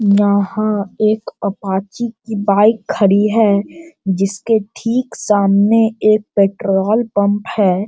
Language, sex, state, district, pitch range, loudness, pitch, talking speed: Hindi, male, Bihar, Sitamarhi, 200-220 Hz, -15 LUFS, 205 Hz, 105 wpm